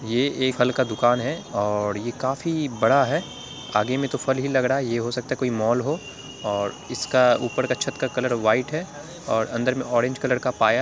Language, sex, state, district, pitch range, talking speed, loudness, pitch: Angika, male, Bihar, Araria, 120-135 Hz, 245 wpm, -23 LUFS, 125 Hz